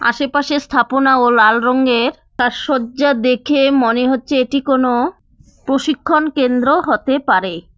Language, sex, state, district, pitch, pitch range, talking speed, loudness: Bengali, female, West Bengal, Cooch Behar, 265 Hz, 245-280 Hz, 110 wpm, -15 LUFS